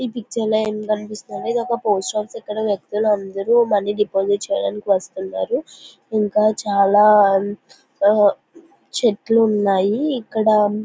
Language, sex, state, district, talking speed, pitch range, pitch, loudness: Telugu, female, Andhra Pradesh, Visakhapatnam, 110 wpm, 205-230 Hz, 215 Hz, -19 LUFS